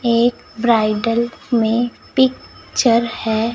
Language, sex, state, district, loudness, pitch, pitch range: Hindi, male, Chhattisgarh, Raipur, -18 LUFS, 235 Hz, 225-240 Hz